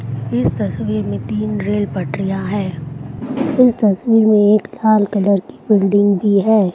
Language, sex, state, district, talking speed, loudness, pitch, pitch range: Hindi, female, Bihar, Gaya, 125 wpm, -16 LUFS, 200 Hz, 145-210 Hz